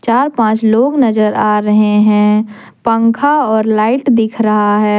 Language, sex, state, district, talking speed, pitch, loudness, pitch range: Hindi, female, Jharkhand, Deoghar, 155 wpm, 220 Hz, -12 LUFS, 210-230 Hz